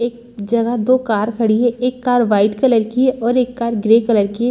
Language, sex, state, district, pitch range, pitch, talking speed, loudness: Hindi, female, Chhattisgarh, Rajnandgaon, 220-245 Hz, 235 Hz, 250 wpm, -16 LUFS